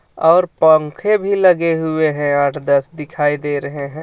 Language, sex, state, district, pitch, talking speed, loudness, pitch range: Hindi, male, Jharkhand, Ranchi, 155 Hz, 180 wpm, -16 LUFS, 145-165 Hz